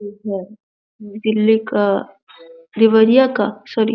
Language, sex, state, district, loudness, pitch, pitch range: Hindi, female, Uttar Pradesh, Deoria, -16 LUFS, 220 Hz, 205-225 Hz